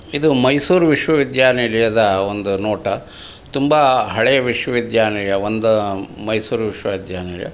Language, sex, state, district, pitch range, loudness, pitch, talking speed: Kannada, male, Karnataka, Mysore, 100-130 Hz, -17 LUFS, 110 Hz, 110 wpm